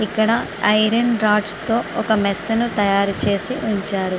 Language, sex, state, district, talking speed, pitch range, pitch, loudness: Telugu, female, Andhra Pradesh, Srikakulam, 145 wpm, 200-225 Hz, 210 Hz, -18 LUFS